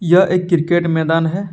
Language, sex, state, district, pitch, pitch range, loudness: Hindi, male, Jharkhand, Deoghar, 175 Hz, 165-180 Hz, -15 LUFS